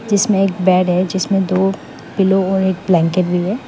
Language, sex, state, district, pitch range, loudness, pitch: Hindi, female, Meghalaya, West Garo Hills, 185-195 Hz, -15 LUFS, 190 Hz